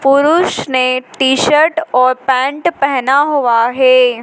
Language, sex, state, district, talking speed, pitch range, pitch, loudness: Hindi, female, Madhya Pradesh, Dhar, 125 wpm, 255-290 Hz, 265 Hz, -12 LUFS